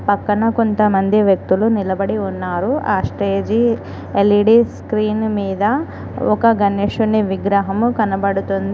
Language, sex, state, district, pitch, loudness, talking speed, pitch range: Telugu, female, Telangana, Mahabubabad, 205 Hz, -17 LUFS, 95 wpm, 195-220 Hz